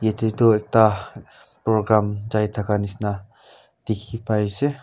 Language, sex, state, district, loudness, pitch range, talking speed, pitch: Nagamese, male, Nagaland, Kohima, -21 LUFS, 105-110 Hz, 125 wpm, 110 Hz